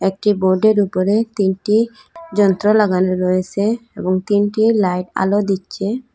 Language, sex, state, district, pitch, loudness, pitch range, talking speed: Bengali, female, Assam, Hailakandi, 205 Hz, -17 LUFS, 190-215 Hz, 125 wpm